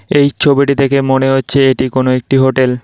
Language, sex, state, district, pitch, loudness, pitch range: Bengali, male, West Bengal, Cooch Behar, 135 Hz, -12 LUFS, 130-140 Hz